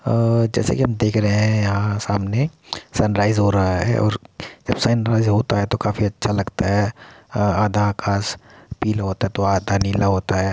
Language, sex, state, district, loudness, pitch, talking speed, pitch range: Hindi, male, Uttar Pradesh, Muzaffarnagar, -20 LUFS, 105 Hz, 200 wpm, 100-115 Hz